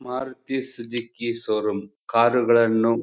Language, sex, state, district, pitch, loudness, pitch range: Kannada, male, Karnataka, Chamarajanagar, 115 Hz, -23 LUFS, 115-125 Hz